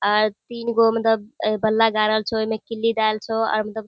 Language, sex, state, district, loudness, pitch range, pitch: Hindi, female, Bihar, Kishanganj, -21 LUFS, 215-225 Hz, 220 Hz